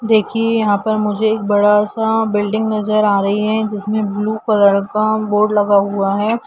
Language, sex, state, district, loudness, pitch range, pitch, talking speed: Hindi, female, Jharkhand, Jamtara, -15 LUFS, 205-220 Hz, 210 Hz, 175 wpm